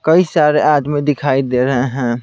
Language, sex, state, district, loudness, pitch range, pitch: Hindi, male, Bihar, Patna, -14 LUFS, 130-150 Hz, 145 Hz